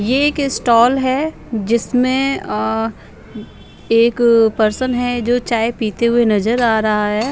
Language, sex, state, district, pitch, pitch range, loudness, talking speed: Hindi, female, Bihar, Patna, 235 Hz, 220-250 Hz, -16 LUFS, 140 wpm